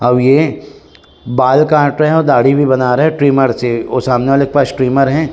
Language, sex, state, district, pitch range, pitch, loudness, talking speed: Chhattisgarhi, male, Chhattisgarh, Rajnandgaon, 125-145 Hz, 135 Hz, -12 LUFS, 225 wpm